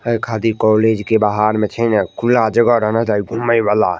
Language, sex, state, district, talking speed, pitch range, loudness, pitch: Maithili, male, Bihar, Madhepura, 210 wpm, 105-115 Hz, -15 LUFS, 110 Hz